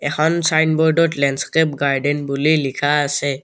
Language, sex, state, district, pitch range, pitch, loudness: Assamese, male, Assam, Kamrup Metropolitan, 140-160 Hz, 145 Hz, -17 LUFS